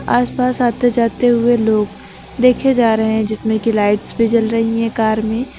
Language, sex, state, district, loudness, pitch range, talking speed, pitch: Hindi, female, Uttar Pradesh, Lucknow, -15 LUFS, 220-245 Hz, 185 wpm, 230 Hz